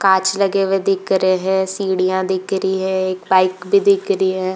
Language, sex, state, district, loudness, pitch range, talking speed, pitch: Hindi, female, Uttar Pradesh, Jalaun, -17 LUFS, 185-195 Hz, 210 wpm, 190 Hz